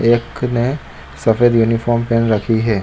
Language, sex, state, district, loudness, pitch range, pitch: Hindi, male, Chhattisgarh, Bilaspur, -16 LUFS, 110-120 Hz, 115 Hz